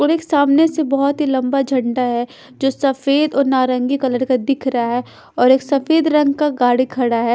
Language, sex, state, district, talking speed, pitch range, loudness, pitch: Hindi, female, Bihar, Patna, 210 wpm, 250-290 Hz, -16 LUFS, 270 Hz